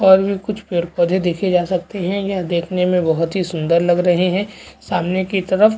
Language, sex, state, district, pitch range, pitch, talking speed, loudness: Hindi, male, Chhattisgarh, Bastar, 175-195 Hz, 180 Hz, 230 wpm, -18 LUFS